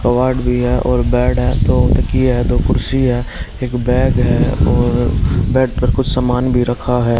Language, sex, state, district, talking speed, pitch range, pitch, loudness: Hindi, male, Haryana, Jhajjar, 190 wpm, 120-125 Hz, 125 Hz, -15 LUFS